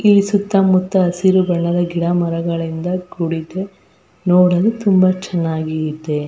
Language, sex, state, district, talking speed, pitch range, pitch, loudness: Kannada, female, Karnataka, Belgaum, 105 wpm, 165-190 Hz, 180 Hz, -17 LUFS